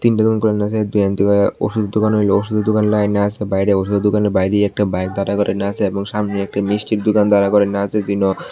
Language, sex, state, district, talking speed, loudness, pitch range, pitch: Bengali, male, Tripura, West Tripura, 175 wpm, -17 LUFS, 100-105 Hz, 105 Hz